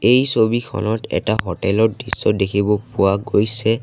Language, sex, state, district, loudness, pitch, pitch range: Assamese, male, Assam, Sonitpur, -18 LUFS, 110 Hz, 100-115 Hz